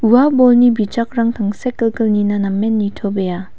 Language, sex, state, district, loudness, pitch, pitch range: Garo, female, Meghalaya, West Garo Hills, -15 LUFS, 220 Hz, 205-240 Hz